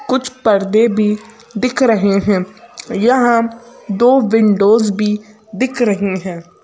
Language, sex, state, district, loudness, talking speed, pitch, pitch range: Hindi, female, Madhya Pradesh, Bhopal, -14 LUFS, 115 wpm, 220 Hz, 205-240 Hz